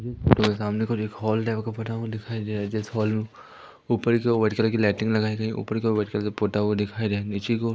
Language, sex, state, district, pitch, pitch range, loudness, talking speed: Hindi, female, Madhya Pradesh, Umaria, 110 Hz, 105-115 Hz, -25 LUFS, 300 wpm